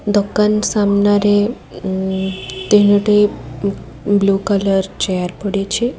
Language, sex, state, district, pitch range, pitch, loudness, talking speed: Odia, female, Odisha, Khordha, 190-205 Hz, 200 Hz, -16 LUFS, 90 wpm